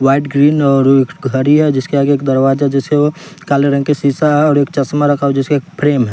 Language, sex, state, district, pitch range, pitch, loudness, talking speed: Hindi, male, Bihar, West Champaran, 135-145 Hz, 140 Hz, -13 LUFS, 255 wpm